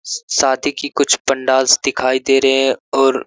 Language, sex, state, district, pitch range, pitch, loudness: Hindi, male, Jharkhand, Sahebganj, 130-140 Hz, 135 Hz, -15 LUFS